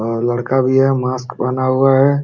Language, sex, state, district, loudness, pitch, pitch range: Hindi, male, Uttar Pradesh, Jalaun, -15 LUFS, 130 Hz, 125-135 Hz